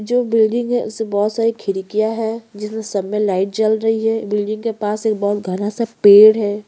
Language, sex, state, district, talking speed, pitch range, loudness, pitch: Hindi, female, Chhattisgarh, Sukma, 215 wpm, 205-225 Hz, -17 LUFS, 215 Hz